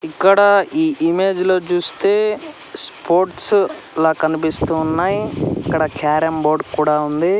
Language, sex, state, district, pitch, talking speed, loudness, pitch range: Telugu, male, Andhra Pradesh, Sri Satya Sai, 175 Hz, 115 wpm, -17 LUFS, 160-200 Hz